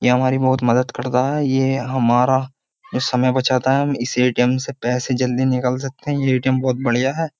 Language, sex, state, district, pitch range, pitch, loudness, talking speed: Hindi, male, Uttar Pradesh, Jyotiba Phule Nagar, 125-135 Hz, 130 Hz, -19 LUFS, 210 wpm